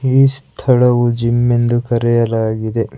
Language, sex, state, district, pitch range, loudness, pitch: Kannada, male, Karnataka, Bangalore, 115-125 Hz, -14 LUFS, 120 Hz